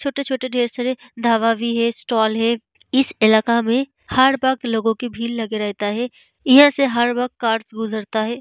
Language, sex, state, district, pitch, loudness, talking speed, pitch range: Hindi, female, Bihar, Vaishali, 235 Hz, -19 LUFS, 185 wpm, 225-255 Hz